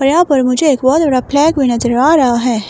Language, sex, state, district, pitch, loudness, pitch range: Hindi, female, Himachal Pradesh, Shimla, 270 Hz, -12 LUFS, 250-295 Hz